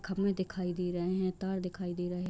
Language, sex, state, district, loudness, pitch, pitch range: Hindi, female, Jharkhand, Sahebganj, -34 LUFS, 185 Hz, 180-190 Hz